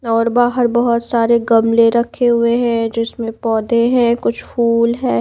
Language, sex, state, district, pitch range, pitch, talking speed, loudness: Hindi, female, Haryana, Rohtak, 230-240 Hz, 235 Hz, 160 wpm, -15 LUFS